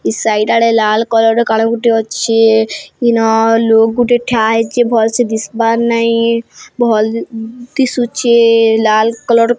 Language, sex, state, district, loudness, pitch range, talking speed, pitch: Odia, female, Odisha, Sambalpur, -12 LUFS, 225-235 Hz, 145 wpm, 230 Hz